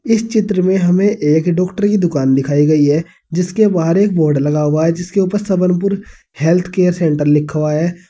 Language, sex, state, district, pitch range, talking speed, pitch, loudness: Hindi, male, Uttar Pradesh, Saharanpur, 155-195 Hz, 200 wpm, 175 Hz, -14 LUFS